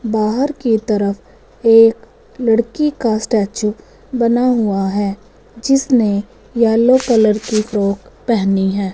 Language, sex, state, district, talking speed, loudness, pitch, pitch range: Hindi, female, Punjab, Fazilka, 115 wpm, -15 LUFS, 225 Hz, 210-240 Hz